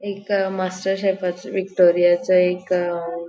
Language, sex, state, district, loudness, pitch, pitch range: Konkani, female, Goa, North and South Goa, -20 LUFS, 185 Hz, 175-195 Hz